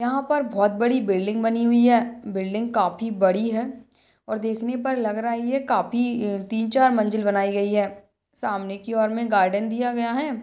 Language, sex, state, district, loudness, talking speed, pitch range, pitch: Hindi, female, Uttar Pradesh, Ghazipur, -23 LUFS, 195 wpm, 205-240 Hz, 225 Hz